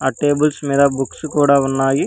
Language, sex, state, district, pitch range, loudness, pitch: Telugu, male, Telangana, Hyderabad, 135-145 Hz, -16 LUFS, 140 Hz